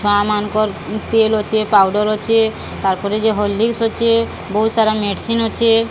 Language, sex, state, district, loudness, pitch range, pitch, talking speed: Odia, female, Odisha, Sambalpur, -16 LUFS, 205-225 Hz, 215 Hz, 120 wpm